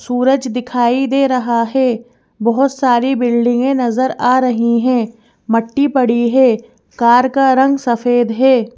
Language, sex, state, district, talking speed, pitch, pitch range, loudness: Hindi, female, Madhya Pradesh, Bhopal, 145 wpm, 245 Hz, 235-260 Hz, -14 LUFS